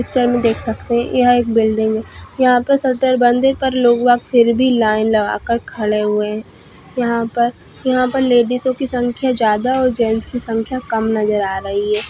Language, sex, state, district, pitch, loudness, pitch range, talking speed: Hindi, female, Bihar, Madhepura, 240 Hz, -16 LUFS, 220-255 Hz, 205 wpm